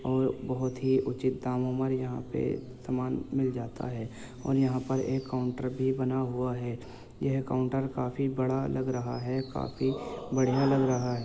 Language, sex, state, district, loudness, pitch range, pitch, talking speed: Hindi, male, Uttar Pradesh, Jyotiba Phule Nagar, -31 LUFS, 125-130 Hz, 130 Hz, 175 wpm